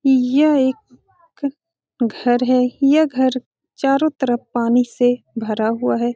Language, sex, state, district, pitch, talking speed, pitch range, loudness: Hindi, female, Bihar, Saran, 255 Hz, 125 wpm, 245-285 Hz, -18 LUFS